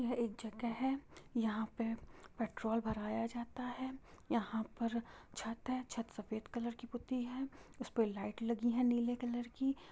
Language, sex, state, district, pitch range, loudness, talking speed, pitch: Hindi, female, Jharkhand, Jamtara, 225-245 Hz, -40 LUFS, 170 wpm, 235 Hz